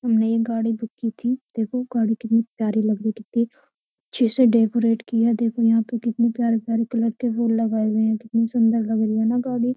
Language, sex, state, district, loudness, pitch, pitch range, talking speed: Hindi, female, Uttar Pradesh, Jyotiba Phule Nagar, -21 LUFS, 230 Hz, 225-235 Hz, 225 wpm